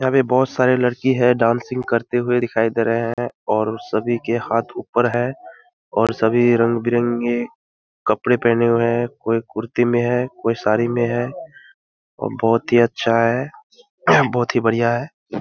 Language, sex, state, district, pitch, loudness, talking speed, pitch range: Hindi, female, Bihar, Kishanganj, 120 Hz, -19 LUFS, 165 wpm, 115-125 Hz